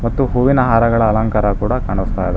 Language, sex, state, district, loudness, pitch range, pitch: Kannada, male, Karnataka, Bangalore, -15 LUFS, 100-125 Hz, 110 Hz